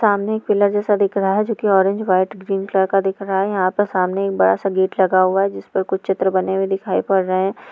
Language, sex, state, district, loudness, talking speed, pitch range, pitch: Hindi, female, Uttar Pradesh, Etah, -18 LUFS, 280 wpm, 190-200 Hz, 195 Hz